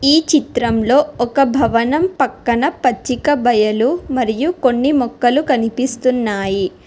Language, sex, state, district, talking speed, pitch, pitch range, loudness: Telugu, female, Telangana, Hyderabad, 95 wpm, 255 Hz, 235-285 Hz, -16 LUFS